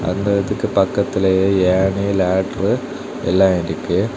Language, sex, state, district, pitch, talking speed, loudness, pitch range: Tamil, male, Tamil Nadu, Kanyakumari, 95 Hz, 100 wpm, -17 LUFS, 95-100 Hz